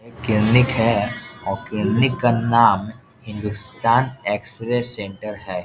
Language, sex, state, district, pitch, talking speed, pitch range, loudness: Hindi, male, Bihar, Jahanabad, 115 Hz, 115 wpm, 105-120 Hz, -20 LUFS